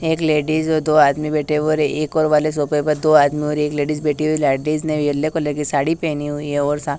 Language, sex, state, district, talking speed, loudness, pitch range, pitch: Hindi, female, Haryana, Charkhi Dadri, 265 wpm, -18 LUFS, 145-155 Hz, 150 Hz